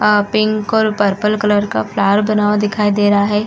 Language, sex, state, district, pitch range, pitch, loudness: Hindi, female, Uttar Pradesh, Muzaffarnagar, 205-215 Hz, 210 Hz, -15 LUFS